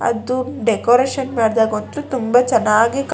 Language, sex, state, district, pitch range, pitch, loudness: Kannada, female, Karnataka, Shimoga, 225-260 Hz, 245 Hz, -17 LUFS